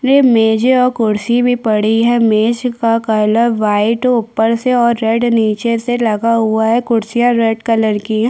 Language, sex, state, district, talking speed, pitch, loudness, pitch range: Hindi, female, Chhattisgarh, Korba, 175 wpm, 230 Hz, -13 LUFS, 220-240 Hz